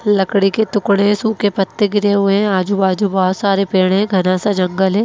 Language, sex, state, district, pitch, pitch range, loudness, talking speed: Hindi, female, Bihar, Lakhisarai, 200 Hz, 190-205 Hz, -15 LUFS, 215 wpm